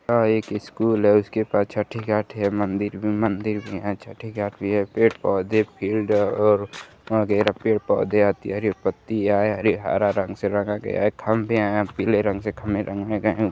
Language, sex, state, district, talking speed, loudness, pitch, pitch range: Hindi, male, Uttar Pradesh, Gorakhpur, 165 wpm, -22 LUFS, 105 Hz, 100-110 Hz